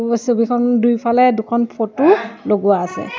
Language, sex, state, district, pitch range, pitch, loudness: Assamese, female, Assam, Sonitpur, 225-245 Hz, 235 Hz, -16 LUFS